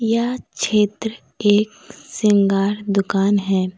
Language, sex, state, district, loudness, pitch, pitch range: Hindi, female, Jharkhand, Deoghar, -19 LUFS, 205 Hz, 195-215 Hz